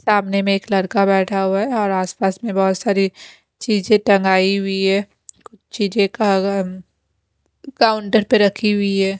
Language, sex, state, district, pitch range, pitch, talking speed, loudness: Hindi, female, Bihar, West Champaran, 195-210 Hz, 195 Hz, 165 wpm, -17 LUFS